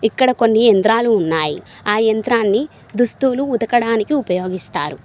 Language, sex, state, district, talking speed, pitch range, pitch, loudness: Telugu, female, Telangana, Mahabubabad, 105 wpm, 190-240 Hz, 225 Hz, -16 LUFS